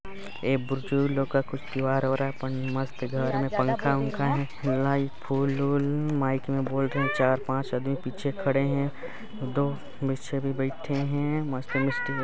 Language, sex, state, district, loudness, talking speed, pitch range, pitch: Hindi, male, Chhattisgarh, Sarguja, -28 LUFS, 145 wpm, 135-140 Hz, 135 Hz